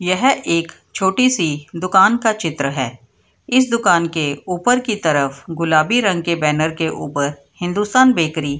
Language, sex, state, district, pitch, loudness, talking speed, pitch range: Hindi, female, Bihar, Madhepura, 170 Hz, -17 LUFS, 160 wpm, 150-205 Hz